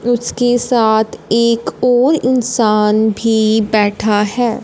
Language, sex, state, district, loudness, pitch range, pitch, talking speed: Hindi, female, Punjab, Fazilka, -14 LUFS, 215-245 Hz, 225 Hz, 105 wpm